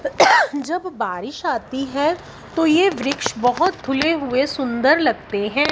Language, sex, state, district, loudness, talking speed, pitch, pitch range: Hindi, female, Punjab, Fazilka, -19 LUFS, 135 wpm, 285 Hz, 265-325 Hz